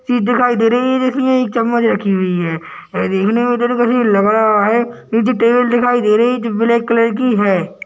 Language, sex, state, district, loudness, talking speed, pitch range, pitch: Hindi, male, Uttarakhand, Tehri Garhwal, -14 LUFS, 215 wpm, 215-245 Hz, 235 Hz